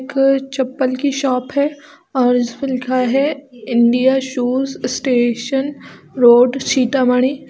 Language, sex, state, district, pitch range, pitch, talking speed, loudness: Hindi, female, Bihar, Sitamarhi, 250-275 Hz, 260 Hz, 110 wpm, -16 LUFS